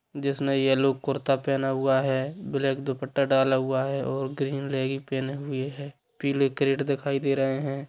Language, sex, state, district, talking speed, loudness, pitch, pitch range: Hindi, male, Bihar, Sitamarhi, 175 wpm, -26 LUFS, 135 Hz, 135-140 Hz